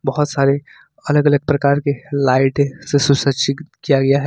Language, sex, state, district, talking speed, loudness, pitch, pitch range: Hindi, male, Jharkhand, Ranchi, 170 wpm, -17 LUFS, 140 Hz, 135-145 Hz